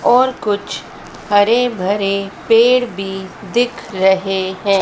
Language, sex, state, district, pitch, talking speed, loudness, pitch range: Hindi, female, Madhya Pradesh, Dhar, 200 Hz, 110 wpm, -16 LUFS, 195-235 Hz